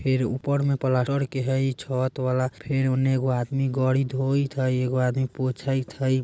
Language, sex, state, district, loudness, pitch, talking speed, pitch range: Bajjika, male, Bihar, Vaishali, -25 LUFS, 130 Hz, 200 wpm, 130-135 Hz